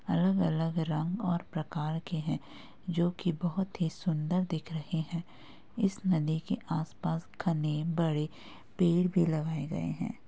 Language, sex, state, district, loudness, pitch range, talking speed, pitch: Hindi, female, Uttar Pradesh, Muzaffarnagar, -32 LUFS, 155-180 Hz, 145 wpm, 165 Hz